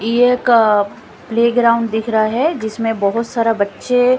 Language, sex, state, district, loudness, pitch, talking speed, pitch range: Hindi, female, Punjab, Fazilka, -16 LUFS, 230 Hz, 145 wpm, 220-240 Hz